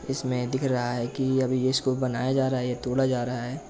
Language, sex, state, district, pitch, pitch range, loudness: Hindi, male, Uttar Pradesh, Jalaun, 130 Hz, 125-130 Hz, -26 LUFS